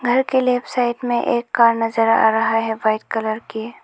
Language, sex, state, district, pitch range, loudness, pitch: Hindi, female, Arunachal Pradesh, Lower Dibang Valley, 225-245 Hz, -18 LUFS, 230 Hz